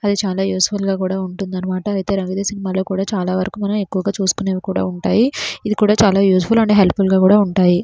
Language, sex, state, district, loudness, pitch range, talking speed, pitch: Telugu, female, Andhra Pradesh, Srikakulam, -17 LUFS, 185-205 Hz, 205 wpm, 195 Hz